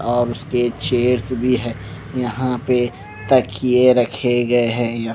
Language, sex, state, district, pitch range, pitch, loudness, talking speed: Hindi, male, Punjab, Pathankot, 115-125 Hz, 120 Hz, -18 LUFS, 150 wpm